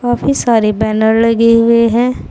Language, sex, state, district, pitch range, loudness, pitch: Hindi, female, Uttar Pradesh, Saharanpur, 220-240 Hz, -11 LUFS, 230 Hz